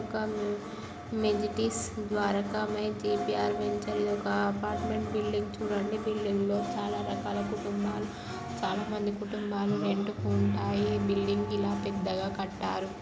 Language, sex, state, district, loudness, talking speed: Telugu, female, Andhra Pradesh, Guntur, -31 LUFS, 125 wpm